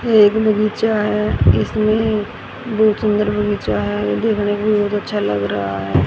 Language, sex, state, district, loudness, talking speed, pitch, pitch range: Hindi, female, Haryana, Rohtak, -17 LUFS, 140 wpm, 210 Hz, 205-215 Hz